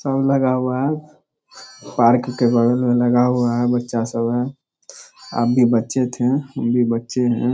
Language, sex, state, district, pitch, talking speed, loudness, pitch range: Hindi, male, Bihar, Darbhanga, 125 Hz, 175 wpm, -19 LUFS, 120-130 Hz